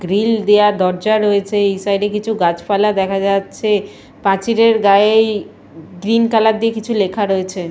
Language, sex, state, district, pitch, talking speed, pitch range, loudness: Bengali, female, West Bengal, Purulia, 205 Hz, 155 wpm, 195-220 Hz, -15 LUFS